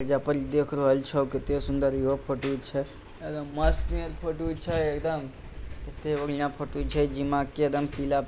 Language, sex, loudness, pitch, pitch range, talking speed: Bhojpuri, male, -28 LUFS, 145 Hz, 140-150 Hz, 175 wpm